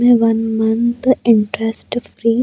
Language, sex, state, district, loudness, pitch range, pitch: Hindi, female, Chhattisgarh, Bastar, -16 LUFS, 225-240 Hz, 230 Hz